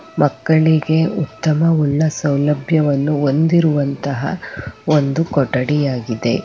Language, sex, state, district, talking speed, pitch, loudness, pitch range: Kannada, female, Karnataka, Chamarajanagar, 65 wpm, 150 Hz, -17 LUFS, 140-160 Hz